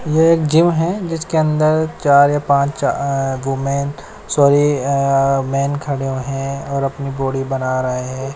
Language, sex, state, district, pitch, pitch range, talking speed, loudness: Hindi, male, Himachal Pradesh, Shimla, 140 Hz, 135-150 Hz, 150 wpm, -17 LUFS